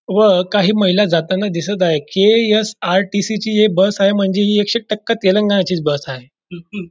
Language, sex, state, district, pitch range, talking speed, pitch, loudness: Marathi, male, Maharashtra, Dhule, 180-210 Hz, 175 wpm, 200 Hz, -15 LUFS